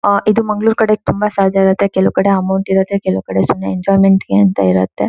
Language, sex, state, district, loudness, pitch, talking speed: Kannada, female, Karnataka, Shimoga, -13 LUFS, 195 Hz, 210 wpm